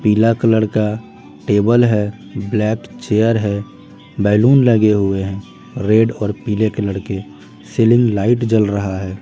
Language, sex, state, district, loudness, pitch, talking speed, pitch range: Hindi, male, Bihar, Patna, -16 LUFS, 105 Hz, 145 wpm, 100-115 Hz